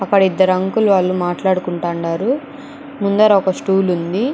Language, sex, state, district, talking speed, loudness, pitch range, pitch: Telugu, female, Andhra Pradesh, Chittoor, 125 wpm, -16 LUFS, 180-215 Hz, 190 Hz